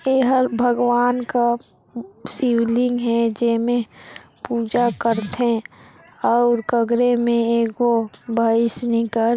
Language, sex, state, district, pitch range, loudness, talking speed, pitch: Chhattisgarhi, female, Chhattisgarh, Sarguja, 230-245 Hz, -19 LUFS, 95 wpm, 235 Hz